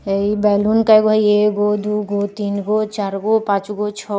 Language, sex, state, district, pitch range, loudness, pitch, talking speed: Bajjika, female, Bihar, Vaishali, 205-210 Hz, -17 LUFS, 210 Hz, 145 wpm